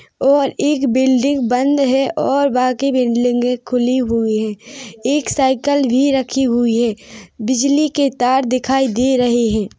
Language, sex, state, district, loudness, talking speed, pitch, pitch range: Hindi, female, Chhattisgarh, Rajnandgaon, -16 LUFS, 145 wpm, 255 Hz, 245-275 Hz